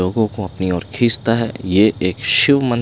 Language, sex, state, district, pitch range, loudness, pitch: Hindi, male, Himachal Pradesh, Shimla, 95-120 Hz, -16 LUFS, 110 Hz